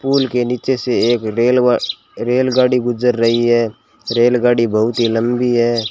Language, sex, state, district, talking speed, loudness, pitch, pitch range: Hindi, male, Rajasthan, Bikaner, 160 wpm, -15 LUFS, 120 Hz, 115-125 Hz